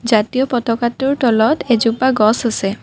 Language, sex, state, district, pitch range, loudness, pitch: Assamese, female, Assam, Kamrup Metropolitan, 220-260 Hz, -15 LUFS, 235 Hz